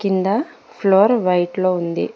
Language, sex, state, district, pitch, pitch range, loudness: Telugu, female, Telangana, Mahabubabad, 190 Hz, 180-200 Hz, -17 LUFS